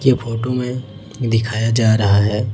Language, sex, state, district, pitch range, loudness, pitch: Hindi, male, Chhattisgarh, Raipur, 105-125 Hz, -17 LUFS, 115 Hz